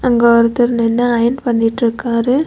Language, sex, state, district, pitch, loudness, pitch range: Tamil, female, Tamil Nadu, Nilgiris, 235 Hz, -14 LUFS, 230-245 Hz